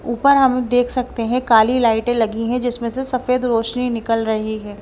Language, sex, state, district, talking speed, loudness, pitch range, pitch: Hindi, female, Punjab, Kapurthala, 200 wpm, -18 LUFS, 225-250 Hz, 240 Hz